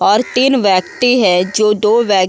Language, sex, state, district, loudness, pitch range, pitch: Hindi, female, Uttar Pradesh, Muzaffarnagar, -12 LUFS, 190-245 Hz, 210 Hz